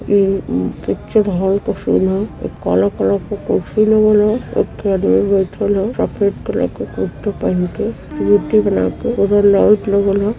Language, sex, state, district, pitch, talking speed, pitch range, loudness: Awadhi, female, Uttar Pradesh, Varanasi, 200 Hz, 160 wpm, 195-210 Hz, -16 LUFS